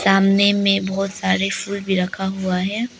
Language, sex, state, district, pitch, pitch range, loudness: Hindi, female, Arunachal Pradesh, Lower Dibang Valley, 195 Hz, 190-200 Hz, -19 LUFS